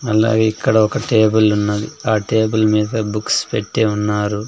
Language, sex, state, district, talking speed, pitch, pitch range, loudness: Telugu, male, Andhra Pradesh, Sri Satya Sai, 145 wpm, 110 Hz, 105-110 Hz, -16 LUFS